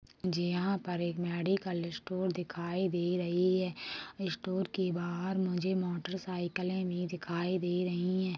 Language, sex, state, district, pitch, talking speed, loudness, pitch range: Hindi, female, Chhattisgarh, Rajnandgaon, 180 Hz, 135 wpm, -34 LUFS, 175-185 Hz